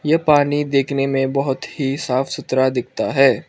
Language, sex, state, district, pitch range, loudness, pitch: Hindi, male, Arunachal Pradesh, Lower Dibang Valley, 135-145 Hz, -18 LUFS, 135 Hz